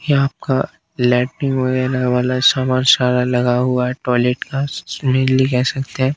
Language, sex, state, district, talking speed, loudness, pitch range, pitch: Hindi, male, Bihar, Kaimur, 125 wpm, -17 LUFS, 125-135 Hz, 130 Hz